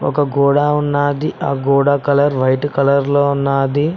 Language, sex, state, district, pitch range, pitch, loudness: Telugu, male, Telangana, Mahabubabad, 140-145 Hz, 140 Hz, -15 LUFS